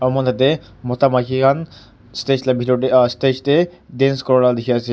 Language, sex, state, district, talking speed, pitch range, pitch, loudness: Nagamese, male, Nagaland, Kohima, 220 wpm, 125-135 Hz, 130 Hz, -17 LUFS